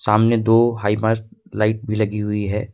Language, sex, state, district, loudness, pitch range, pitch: Hindi, male, Jharkhand, Ranchi, -19 LUFS, 105-115 Hz, 110 Hz